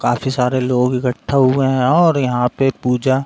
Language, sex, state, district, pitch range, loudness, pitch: Hindi, male, Uttar Pradesh, Etah, 125-135 Hz, -16 LUFS, 130 Hz